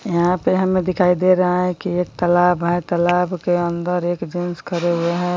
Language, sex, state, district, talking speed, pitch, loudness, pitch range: Hindi, female, Bihar, Bhagalpur, 210 wpm, 180 Hz, -19 LUFS, 175-180 Hz